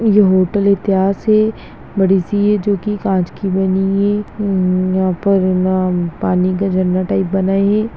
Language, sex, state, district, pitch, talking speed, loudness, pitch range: Hindi, female, Bihar, Begusarai, 195 Hz, 150 wpm, -15 LUFS, 185-205 Hz